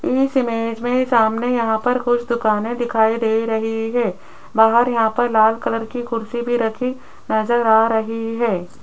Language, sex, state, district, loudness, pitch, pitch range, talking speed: Hindi, female, Rajasthan, Jaipur, -18 LUFS, 230 Hz, 220-240 Hz, 170 wpm